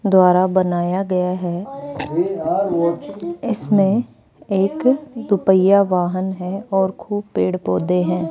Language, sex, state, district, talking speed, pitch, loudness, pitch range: Hindi, female, Rajasthan, Jaipur, 110 wpm, 190 Hz, -19 LUFS, 180-205 Hz